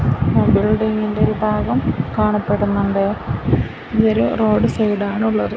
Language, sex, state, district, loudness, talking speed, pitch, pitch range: Malayalam, female, Kerala, Kasaragod, -18 LUFS, 75 wpm, 210 Hz, 200-215 Hz